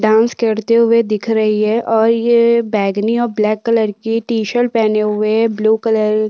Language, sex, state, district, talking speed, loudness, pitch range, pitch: Hindi, female, Chhattisgarh, Korba, 190 wpm, -14 LUFS, 215-230 Hz, 225 Hz